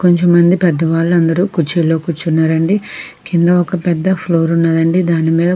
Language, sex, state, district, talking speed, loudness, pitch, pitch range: Telugu, female, Andhra Pradesh, Krishna, 130 wpm, -13 LUFS, 170 Hz, 165-180 Hz